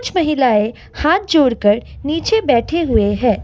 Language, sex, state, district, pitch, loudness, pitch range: Hindi, female, Assam, Kamrup Metropolitan, 280 Hz, -15 LUFS, 225-335 Hz